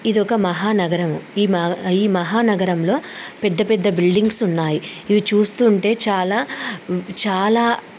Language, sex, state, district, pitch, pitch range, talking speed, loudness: Telugu, female, Andhra Pradesh, Srikakulam, 205 Hz, 180-220 Hz, 115 wpm, -18 LUFS